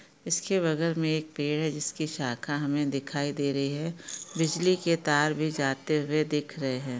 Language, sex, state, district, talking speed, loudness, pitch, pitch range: Hindi, female, Chhattisgarh, Bastar, 190 wpm, -29 LUFS, 150 Hz, 145-160 Hz